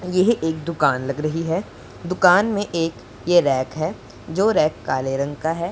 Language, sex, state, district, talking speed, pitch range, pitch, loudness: Hindi, male, Punjab, Pathankot, 190 wpm, 135-175 Hz, 160 Hz, -21 LUFS